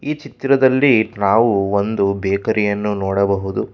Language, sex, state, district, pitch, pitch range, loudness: Kannada, male, Karnataka, Bangalore, 105 Hz, 100-125 Hz, -17 LUFS